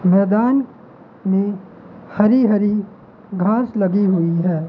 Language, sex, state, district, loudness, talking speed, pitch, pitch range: Hindi, male, Madhya Pradesh, Katni, -17 LUFS, 100 wpm, 205 Hz, 190-220 Hz